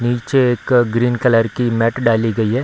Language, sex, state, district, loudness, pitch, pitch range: Hindi, male, Bihar, Darbhanga, -16 LUFS, 120 Hz, 115-125 Hz